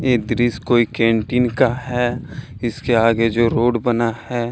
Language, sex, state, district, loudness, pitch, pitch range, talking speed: Hindi, male, Jharkhand, Deoghar, -18 LUFS, 120 Hz, 115-125 Hz, 160 wpm